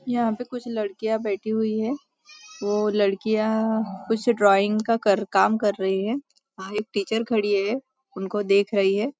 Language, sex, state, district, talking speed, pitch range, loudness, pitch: Hindi, female, Maharashtra, Nagpur, 170 wpm, 200-235 Hz, -23 LUFS, 220 Hz